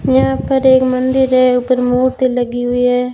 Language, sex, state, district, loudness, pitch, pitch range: Hindi, female, Rajasthan, Bikaner, -13 LUFS, 250 Hz, 245-255 Hz